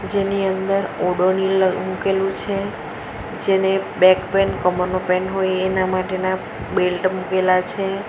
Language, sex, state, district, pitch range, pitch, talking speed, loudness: Gujarati, female, Gujarat, Valsad, 185-195 Hz, 190 Hz, 120 wpm, -19 LUFS